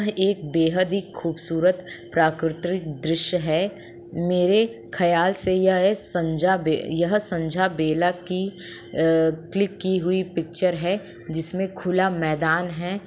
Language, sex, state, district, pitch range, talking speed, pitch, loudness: Hindi, female, Uttar Pradesh, Budaun, 160-185 Hz, 130 wpm, 180 Hz, -22 LUFS